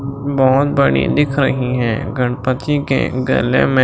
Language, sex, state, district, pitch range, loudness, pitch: Hindi, male, Maharashtra, Washim, 130-140 Hz, -16 LUFS, 135 Hz